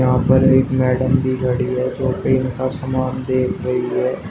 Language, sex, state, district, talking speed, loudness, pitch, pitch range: Hindi, male, Uttar Pradesh, Shamli, 195 wpm, -18 LUFS, 130 Hz, 125-130 Hz